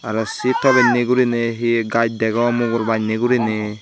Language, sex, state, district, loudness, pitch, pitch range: Chakma, male, Tripura, Dhalai, -18 LUFS, 115 Hz, 110-120 Hz